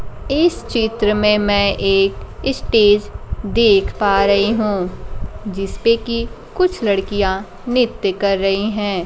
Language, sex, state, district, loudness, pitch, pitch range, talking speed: Hindi, female, Bihar, Kaimur, -17 LUFS, 205 Hz, 195-230 Hz, 120 wpm